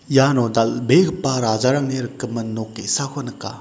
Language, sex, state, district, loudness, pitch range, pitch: Garo, male, Meghalaya, West Garo Hills, -20 LUFS, 115-135 Hz, 125 Hz